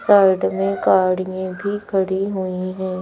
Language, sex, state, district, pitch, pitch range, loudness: Hindi, female, Madhya Pradesh, Bhopal, 190 Hz, 185-195 Hz, -19 LUFS